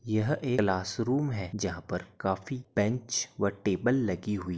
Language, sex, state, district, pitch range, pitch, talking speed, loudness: Hindi, male, Uttar Pradesh, Gorakhpur, 95-125 Hz, 105 Hz, 185 wpm, -30 LUFS